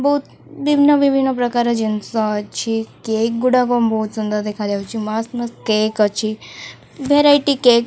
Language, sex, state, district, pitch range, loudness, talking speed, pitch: Odia, female, Odisha, Khordha, 215-265 Hz, -17 LUFS, 130 wpm, 230 Hz